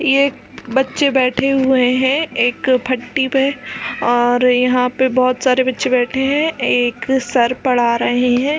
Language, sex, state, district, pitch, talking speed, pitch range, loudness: Hindi, female, Chhattisgarh, Balrampur, 255 Hz, 160 wpm, 245-270 Hz, -16 LUFS